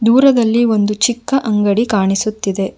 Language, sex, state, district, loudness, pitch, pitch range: Kannada, female, Karnataka, Bangalore, -14 LUFS, 220 Hz, 205-240 Hz